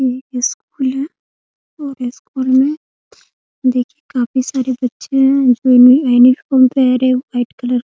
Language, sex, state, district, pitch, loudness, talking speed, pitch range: Hindi, female, Bihar, Muzaffarpur, 255 Hz, -14 LUFS, 135 wpm, 250-270 Hz